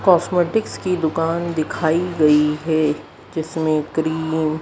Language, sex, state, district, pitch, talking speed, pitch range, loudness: Hindi, female, Madhya Pradesh, Dhar, 160 Hz, 115 wpm, 155-170 Hz, -20 LUFS